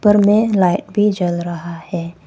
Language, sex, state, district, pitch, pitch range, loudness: Hindi, female, Arunachal Pradesh, Papum Pare, 180 Hz, 170-205 Hz, -16 LUFS